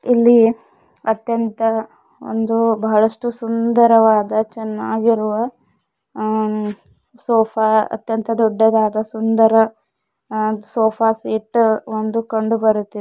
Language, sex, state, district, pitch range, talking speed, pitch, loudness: Kannada, female, Karnataka, Bidar, 220-230 Hz, 85 wpm, 220 Hz, -17 LUFS